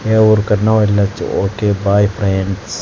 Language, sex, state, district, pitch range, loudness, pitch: Telugu, male, Andhra Pradesh, Sri Satya Sai, 100-110 Hz, -14 LUFS, 105 Hz